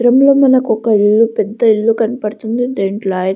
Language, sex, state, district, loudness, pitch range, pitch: Telugu, female, Andhra Pradesh, Guntur, -13 LUFS, 210-245 Hz, 225 Hz